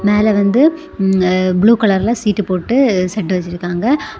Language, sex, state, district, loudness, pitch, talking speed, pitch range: Tamil, female, Tamil Nadu, Kanyakumari, -14 LUFS, 205 Hz, 140 wpm, 185-230 Hz